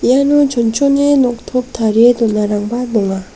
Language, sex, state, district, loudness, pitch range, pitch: Garo, female, Meghalaya, West Garo Hills, -13 LUFS, 220-270 Hz, 240 Hz